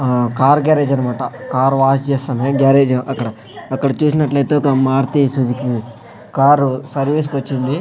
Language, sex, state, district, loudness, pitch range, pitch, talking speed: Telugu, male, Andhra Pradesh, Sri Satya Sai, -16 LUFS, 130-140 Hz, 135 Hz, 130 wpm